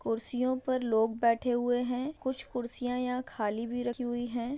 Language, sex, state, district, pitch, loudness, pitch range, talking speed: Hindi, female, Andhra Pradesh, Visakhapatnam, 245 Hz, -31 LUFS, 235-255 Hz, 185 wpm